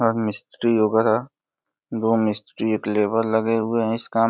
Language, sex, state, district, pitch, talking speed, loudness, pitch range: Hindi, male, Uttar Pradesh, Deoria, 110 Hz, 165 wpm, -22 LUFS, 110-115 Hz